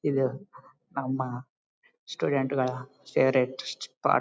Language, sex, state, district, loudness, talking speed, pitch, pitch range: Kannada, male, Karnataka, Bellary, -29 LUFS, 100 wpm, 130 Hz, 130-135 Hz